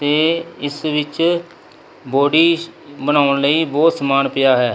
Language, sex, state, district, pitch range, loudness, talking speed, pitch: Punjabi, male, Punjab, Kapurthala, 140-165 Hz, -16 LUFS, 125 wpm, 145 Hz